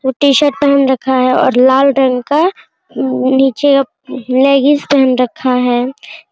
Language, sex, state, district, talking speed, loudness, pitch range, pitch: Hindi, female, Bihar, Araria, 140 wpm, -12 LUFS, 255-280 Hz, 265 Hz